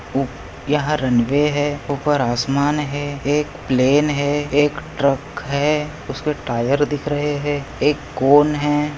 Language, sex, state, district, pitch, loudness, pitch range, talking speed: Hindi, male, Maharashtra, Pune, 145 Hz, -19 LUFS, 140-150 Hz, 135 wpm